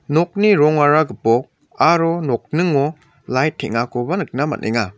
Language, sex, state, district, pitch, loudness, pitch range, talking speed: Garo, male, Meghalaya, West Garo Hills, 150 Hz, -17 LUFS, 120-165 Hz, 110 wpm